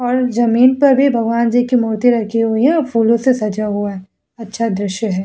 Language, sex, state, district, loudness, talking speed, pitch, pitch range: Hindi, female, Bihar, Vaishali, -15 LUFS, 215 wpm, 230 Hz, 220-245 Hz